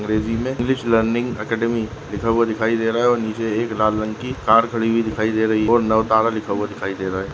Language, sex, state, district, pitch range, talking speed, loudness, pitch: Hindi, male, Goa, North and South Goa, 110-115 Hz, 270 wpm, -20 LUFS, 110 Hz